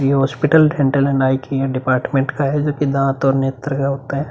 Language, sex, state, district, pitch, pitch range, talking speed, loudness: Hindi, male, Uttar Pradesh, Budaun, 135 Hz, 135-140 Hz, 225 wpm, -17 LUFS